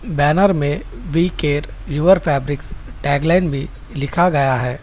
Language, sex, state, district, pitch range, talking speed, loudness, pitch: Hindi, male, Telangana, Hyderabad, 140-170 Hz, 150 wpm, -18 LUFS, 145 Hz